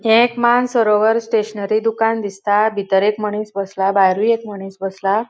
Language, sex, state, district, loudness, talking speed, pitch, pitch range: Konkani, female, Goa, North and South Goa, -17 LUFS, 170 wpm, 210 Hz, 195-225 Hz